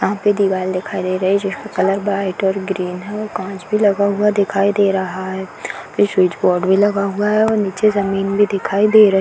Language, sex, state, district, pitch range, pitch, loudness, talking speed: Hindi, female, Bihar, Darbhanga, 190-205 Hz, 195 Hz, -17 LUFS, 250 wpm